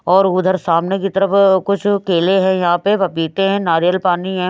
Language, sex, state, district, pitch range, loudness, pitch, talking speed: Hindi, female, Haryana, Rohtak, 175-195 Hz, -15 LUFS, 190 Hz, 200 wpm